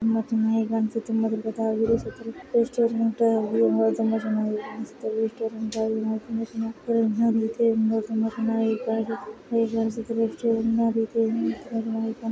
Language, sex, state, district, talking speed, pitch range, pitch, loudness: Kannada, female, Karnataka, Chamarajanagar, 115 wpm, 220-230 Hz, 225 Hz, -25 LUFS